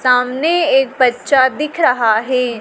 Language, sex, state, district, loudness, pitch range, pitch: Hindi, female, Madhya Pradesh, Dhar, -14 LUFS, 250-270 Hz, 255 Hz